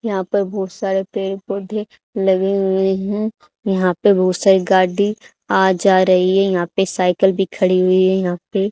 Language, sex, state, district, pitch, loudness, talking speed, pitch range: Hindi, female, Haryana, Charkhi Dadri, 190 Hz, -17 LUFS, 185 wpm, 185-200 Hz